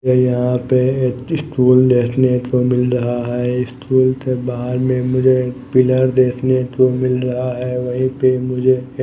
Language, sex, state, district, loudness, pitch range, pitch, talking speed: Hindi, male, Odisha, Nuapada, -16 LUFS, 125-130 Hz, 125 Hz, 175 wpm